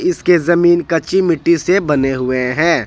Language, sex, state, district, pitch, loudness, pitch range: Hindi, male, Jharkhand, Ranchi, 170 Hz, -14 LUFS, 150-175 Hz